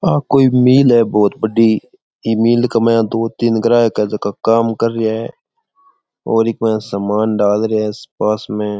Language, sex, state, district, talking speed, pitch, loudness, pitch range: Rajasthani, male, Rajasthan, Churu, 170 wpm, 115 Hz, -15 LUFS, 105-120 Hz